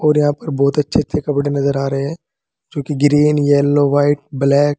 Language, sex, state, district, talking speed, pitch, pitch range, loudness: Hindi, male, Uttar Pradesh, Saharanpur, 225 wpm, 145 Hz, 140-150 Hz, -16 LUFS